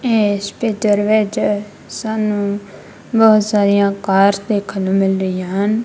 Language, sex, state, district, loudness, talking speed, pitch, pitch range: Punjabi, female, Punjab, Kapurthala, -16 LUFS, 115 wpm, 205 Hz, 200-215 Hz